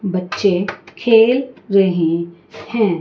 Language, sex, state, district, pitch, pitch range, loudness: Hindi, female, Chandigarh, Chandigarh, 195 Hz, 180-225 Hz, -16 LUFS